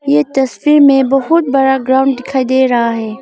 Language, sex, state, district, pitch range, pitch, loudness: Hindi, female, Arunachal Pradesh, Longding, 260-275 Hz, 270 Hz, -12 LUFS